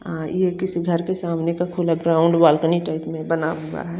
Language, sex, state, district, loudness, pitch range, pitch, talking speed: Hindi, female, Chandigarh, Chandigarh, -21 LUFS, 160-175 Hz, 170 Hz, 225 wpm